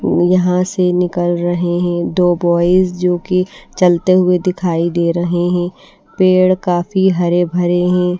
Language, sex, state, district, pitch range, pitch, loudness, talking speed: Hindi, female, Bihar, Patna, 175-185 Hz, 180 Hz, -14 LUFS, 145 wpm